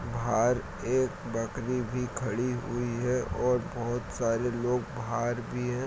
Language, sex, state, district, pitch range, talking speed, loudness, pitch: Hindi, male, Jharkhand, Sahebganj, 120-125 Hz, 155 wpm, -30 LUFS, 120 Hz